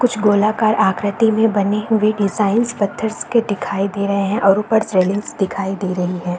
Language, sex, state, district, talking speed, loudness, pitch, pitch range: Hindi, female, Uttar Pradesh, Deoria, 190 wpm, -17 LUFS, 205 Hz, 195-220 Hz